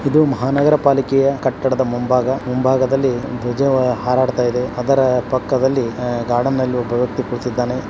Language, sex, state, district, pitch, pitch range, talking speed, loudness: Kannada, male, Karnataka, Belgaum, 130 Hz, 125-135 Hz, 120 wpm, -17 LUFS